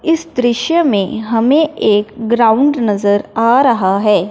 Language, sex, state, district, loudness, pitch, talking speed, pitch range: Hindi, male, Punjab, Fazilka, -13 LUFS, 230 Hz, 140 wpm, 210-275 Hz